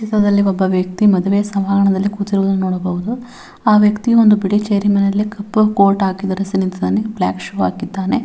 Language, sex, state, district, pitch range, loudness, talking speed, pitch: Kannada, female, Karnataka, Bellary, 195-210 Hz, -16 LUFS, 160 wpm, 200 Hz